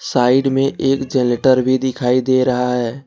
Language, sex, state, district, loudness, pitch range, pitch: Hindi, male, Jharkhand, Ranchi, -16 LUFS, 125-135 Hz, 130 Hz